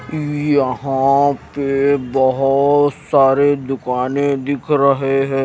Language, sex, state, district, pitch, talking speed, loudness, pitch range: Hindi, male, Himachal Pradesh, Shimla, 140 Hz, 90 wpm, -16 LUFS, 135-145 Hz